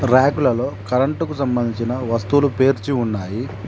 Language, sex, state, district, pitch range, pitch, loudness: Telugu, male, Telangana, Mahabubabad, 115-135 Hz, 125 Hz, -19 LUFS